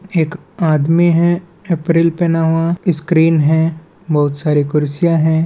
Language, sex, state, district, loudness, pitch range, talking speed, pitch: Hindi, male, Chhattisgarh, Balrampur, -15 LUFS, 160-170 Hz, 130 wpm, 165 Hz